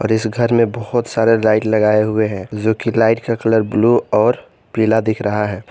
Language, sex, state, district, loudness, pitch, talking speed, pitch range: Hindi, male, Jharkhand, Garhwa, -16 LUFS, 110 Hz, 200 wpm, 105-115 Hz